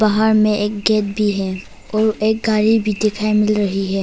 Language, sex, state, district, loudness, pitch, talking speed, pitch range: Hindi, female, Arunachal Pradesh, Papum Pare, -17 LUFS, 210 Hz, 210 wpm, 205-215 Hz